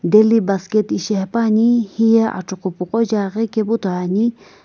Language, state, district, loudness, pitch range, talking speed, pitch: Sumi, Nagaland, Kohima, -17 LUFS, 195-225 Hz, 140 wpm, 215 Hz